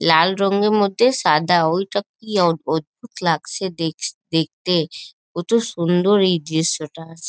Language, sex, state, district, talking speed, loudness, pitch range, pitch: Bengali, female, West Bengal, North 24 Parganas, 125 wpm, -19 LUFS, 160-200 Hz, 175 Hz